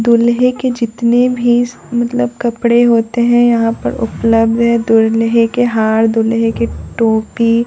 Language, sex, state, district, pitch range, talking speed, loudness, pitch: Hindi, male, Bihar, Katihar, 225-240 Hz, 140 wpm, -13 LUFS, 235 Hz